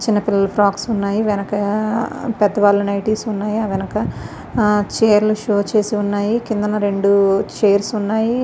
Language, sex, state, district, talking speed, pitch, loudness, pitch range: Telugu, female, Andhra Pradesh, Visakhapatnam, 120 wpm, 210 Hz, -17 LUFS, 200-215 Hz